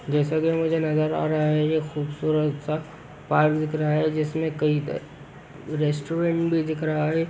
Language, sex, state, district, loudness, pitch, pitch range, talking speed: Hindi, male, Bihar, Sitamarhi, -24 LUFS, 155 Hz, 150-155 Hz, 165 wpm